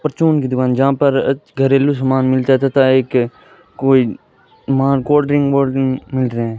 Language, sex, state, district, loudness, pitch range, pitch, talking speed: Hindi, male, Rajasthan, Bikaner, -15 LUFS, 130-140 Hz, 135 Hz, 180 wpm